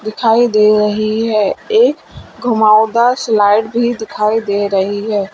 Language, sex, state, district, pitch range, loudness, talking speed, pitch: Hindi, female, Uttar Pradesh, Lalitpur, 210-230 Hz, -13 LUFS, 135 wpm, 215 Hz